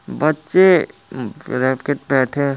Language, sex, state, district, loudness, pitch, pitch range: Hindi, male, Bihar, Muzaffarpur, -17 LUFS, 145 Hz, 130-155 Hz